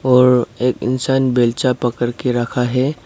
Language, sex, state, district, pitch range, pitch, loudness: Hindi, male, Arunachal Pradesh, Papum Pare, 120-125 Hz, 125 Hz, -17 LUFS